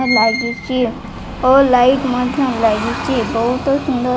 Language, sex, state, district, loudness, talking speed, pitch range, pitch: Odia, female, Odisha, Malkangiri, -15 LUFS, 115 wpm, 235-265 Hz, 250 Hz